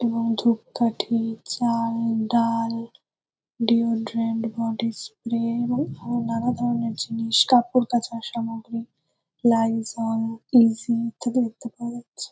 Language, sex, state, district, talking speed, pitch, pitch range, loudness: Bengali, female, West Bengal, Kolkata, 105 wpm, 230 Hz, 225-235 Hz, -24 LUFS